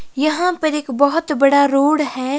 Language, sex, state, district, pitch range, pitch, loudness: Hindi, female, Himachal Pradesh, Shimla, 280-310 Hz, 290 Hz, -16 LUFS